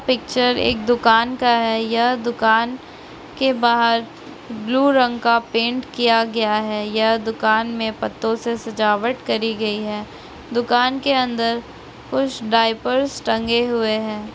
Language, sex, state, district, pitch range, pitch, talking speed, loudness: Hindi, female, West Bengal, Purulia, 225-245 Hz, 230 Hz, 140 wpm, -19 LUFS